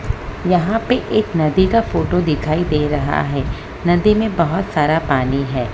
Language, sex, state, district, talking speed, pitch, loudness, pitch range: Hindi, female, Maharashtra, Mumbai Suburban, 165 wpm, 160 Hz, -17 LUFS, 140-190 Hz